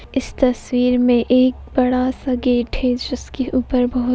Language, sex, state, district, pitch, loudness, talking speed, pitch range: Hindi, female, Uttar Pradesh, Etah, 250 Hz, -18 LUFS, 175 wpm, 245-255 Hz